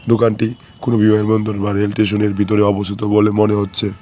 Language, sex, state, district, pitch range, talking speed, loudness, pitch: Bengali, male, West Bengal, Cooch Behar, 105-110 Hz, 150 wpm, -16 LUFS, 105 Hz